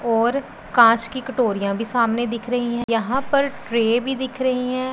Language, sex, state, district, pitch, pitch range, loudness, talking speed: Hindi, male, Punjab, Pathankot, 240 Hz, 230-260 Hz, -21 LUFS, 195 wpm